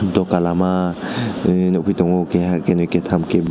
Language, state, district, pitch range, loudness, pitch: Kokborok, Tripura, West Tripura, 85-90 Hz, -18 LUFS, 90 Hz